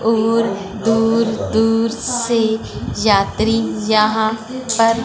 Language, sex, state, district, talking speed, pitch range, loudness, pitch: Hindi, female, Punjab, Fazilka, 85 wpm, 220-230 Hz, -17 LUFS, 225 Hz